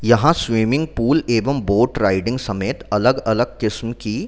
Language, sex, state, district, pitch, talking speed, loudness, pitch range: Hindi, male, Chhattisgarh, Rajnandgaon, 115 Hz, 155 wpm, -19 LUFS, 105-130 Hz